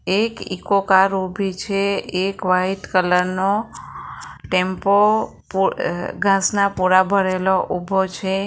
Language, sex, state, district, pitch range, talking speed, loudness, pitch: Gujarati, female, Gujarat, Valsad, 185-200 Hz, 105 wpm, -19 LUFS, 190 Hz